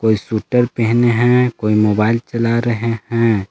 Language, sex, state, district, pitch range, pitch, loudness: Hindi, male, Jharkhand, Palamu, 110-120 Hz, 115 Hz, -16 LUFS